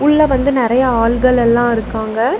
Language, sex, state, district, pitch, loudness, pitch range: Tamil, female, Tamil Nadu, Namakkal, 245 Hz, -14 LUFS, 230-265 Hz